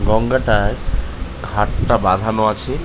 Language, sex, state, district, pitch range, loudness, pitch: Bengali, male, West Bengal, North 24 Parganas, 90-110 Hz, -18 LUFS, 105 Hz